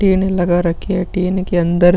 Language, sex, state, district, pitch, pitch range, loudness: Hindi, male, Chhattisgarh, Sukma, 180 Hz, 175-190 Hz, -16 LUFS